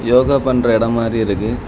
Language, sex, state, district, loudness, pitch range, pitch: Tamil, male, Tamil Nadu, Kanyakumari, -15 LUFS, 115-125 Hz, 115 Hz